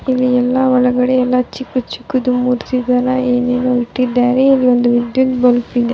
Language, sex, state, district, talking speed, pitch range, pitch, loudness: Kannada, female, Karnataka, Raichur, 170 wpm, 245-255 Hz, 250 Hz, -14 LUFS